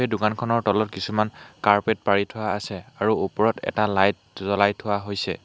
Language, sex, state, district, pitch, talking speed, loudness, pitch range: Assamese, male, Assam, Hailakandi, 105 Hz, 165 wpm, -23 LUFS, 100-110 Hz